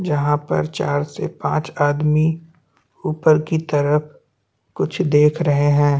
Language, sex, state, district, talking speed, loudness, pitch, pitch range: Hindi, male, Chhattisgarh, Bastar, 130 wpm, -19 LUFS, 150 Hz, 145-155 Hz